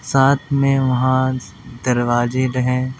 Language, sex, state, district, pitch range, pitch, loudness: Hindi, male, Delhi, New Delhi, 125-135 Hz, 130 Hz, -18 LUFS